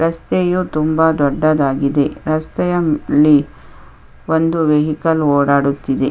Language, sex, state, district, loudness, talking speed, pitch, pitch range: Kannada, female, Karnataka, Chamarajanagar, -15 LUFS, 80 wpm, 150 Hz, 140-160 Hz